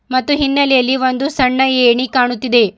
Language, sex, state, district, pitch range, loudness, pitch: Kannada, female, Karnataka, Bidar, 245-265 Hz, -14 LUFS, 255 Hz